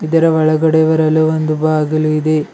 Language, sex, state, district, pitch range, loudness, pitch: Kannada, male, Karnataka, Bidar, 155-160 Hz, -13 LUFS, 155 Hz